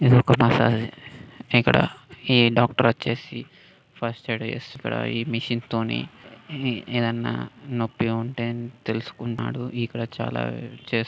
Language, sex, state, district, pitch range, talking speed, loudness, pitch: Telugu, male, Telangana, Karimnagar, 115-125 Hz, 110 wpm, -24 LUFS, 115 Hz